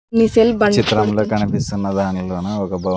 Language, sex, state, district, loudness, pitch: Telugu, male, Andhra Pradesh, Sri Satya Sai, -17 LUFS, 105 Hz